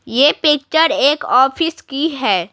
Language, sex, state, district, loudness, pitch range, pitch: Hindi, female, Bihar, Patna, -15 LUFS, 270-315 Hz, 290 Hz